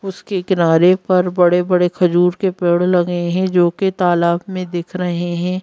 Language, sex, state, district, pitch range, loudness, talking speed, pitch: Hindi, female, Madhya Pradesh, Bhopal, 175-185 Hz, -16 LUFS, 170 wpm, 180 Hz